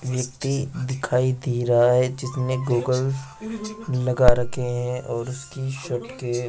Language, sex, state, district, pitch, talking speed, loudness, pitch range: Hindi, male, Rajasthan, Jaipur, 130 Hz, 140 wpm, -24 LUFS, 125-135 Hz